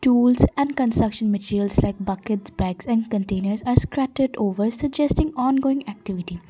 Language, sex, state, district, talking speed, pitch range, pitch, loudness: English, female, Assam, Kamrup Metropolitan, 150 wpm, 200-260 Hz, 220 Hz, -22 LUFS